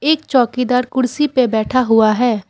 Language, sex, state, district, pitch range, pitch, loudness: Hindi, female, Assam, Kamrup Metropolitan, 225-260 Hz, 250 Hz, -15 LUFS